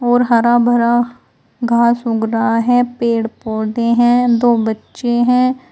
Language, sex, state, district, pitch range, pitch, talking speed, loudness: Hindi, female, Uttar Pradesh, Shamli, 230-245 Hz, 240 Hz, 135 wpm, -15 LUFS